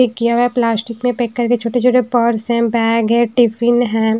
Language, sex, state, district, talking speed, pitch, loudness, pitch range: Hindi, female, Himachal Pradesh, Shimla, 215 wpm, 235 Hz, -15 LUFS, 230-245 Hz